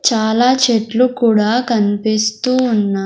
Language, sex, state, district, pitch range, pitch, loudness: Telugu, male, Andhra Pradesh, Sri Satya Sai, 215-250 Hz, 225 Hz, -14 LUFS